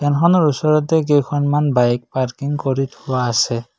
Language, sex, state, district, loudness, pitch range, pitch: Assamese, male, Assam, Kamrup Metropolitan, -17 LUFS, 125-150 Hz, 145 Hz